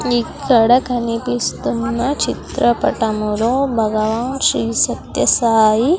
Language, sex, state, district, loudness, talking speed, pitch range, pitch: Telugu, female, Andhra Pradesh, Sri Satya Sai, -16 LUFS, 70 wpm, 225-250 Hz, 235 Hz